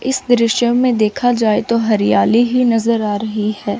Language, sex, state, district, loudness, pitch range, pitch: Hindi, female, Chandigarh, Chandigarh, -15 LUFS, 215-245 Hz, 230 Hz